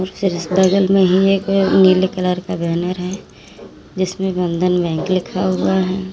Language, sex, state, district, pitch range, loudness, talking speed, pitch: Hindi, female, Uttar Pradesh, Lalitpur, 180-190 Hz, -16 LUFS, 145 wpm, 185 Hz